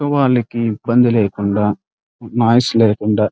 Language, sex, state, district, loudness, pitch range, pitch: Telugu, male, Andhra Pradesh, Krishna, -15 LUFS, 105-120 Hz, 115 Hz